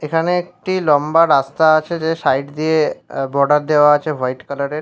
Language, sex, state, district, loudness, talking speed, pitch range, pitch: Bengali, male, West Bengal, Paschim Medinipur, -16 LUFS, 200 wpm, 140-165 Hz, 155 Hz